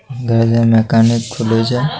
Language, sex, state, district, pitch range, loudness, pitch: Bengali, male, West Bengal, North 24 Parganas, 115-120 Hz, -14 LUFS, 115 Hz